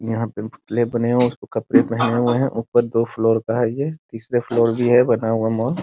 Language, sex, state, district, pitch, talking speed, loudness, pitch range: Hindi, male, Bihar, Muzaffarpur, 115 Hz, 255 wpm, -19 LUFS, 115-120 Hz